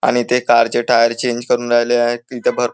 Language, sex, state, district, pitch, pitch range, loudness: Marathi, male, Maharashtra, Nagpur, 120 Hz, 120-125 Hz, -15 LUFS